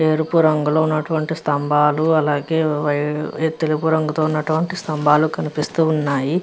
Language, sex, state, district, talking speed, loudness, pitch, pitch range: Telugu, female, Andhra Pradesh, Visakhapatnam, 110 wpm, -19 LUFS, 155 Hz, 150-160 Hz